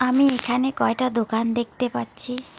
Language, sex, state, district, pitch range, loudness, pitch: Bengali, female, West Bengal, Alipurduar, 230-255 Hz, -23 LUFS, 250 Hz